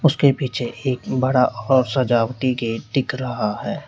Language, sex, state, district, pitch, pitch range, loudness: Hindi, male, Uttar Pradesh, Lalitpur, 130 Hz, 120-130 Hz, -20 LUFS